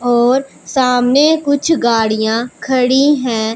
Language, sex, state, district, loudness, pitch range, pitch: Hindi, female, Punjab, Pathankot, -13 LUFS, 235-285 Hz, 250 Hz